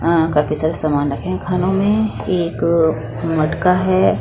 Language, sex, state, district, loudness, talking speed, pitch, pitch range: Hindi, female, Bihar, West Champaran, -17 LUFS, 155 wpm, 165 Hz, 150-180 Hz